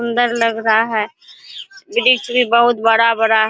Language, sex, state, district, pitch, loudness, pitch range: Hindi, female, Chhattisgarh, Korba, 235 Hz, -15 LUFS, 225-245 Hz